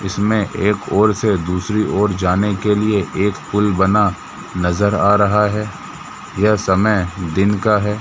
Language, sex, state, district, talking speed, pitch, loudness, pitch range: Hindi, male, Jharkhand, Jamtara, 165 wpm, 105 Hz, -16 LUFS, 95-105 Hz